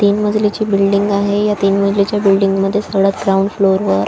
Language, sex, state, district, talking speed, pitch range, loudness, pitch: Marathi, female, Maharashtra, Chandrapur, 190 wpm, 195-205 Hz, -14 LUFS, 200 Hz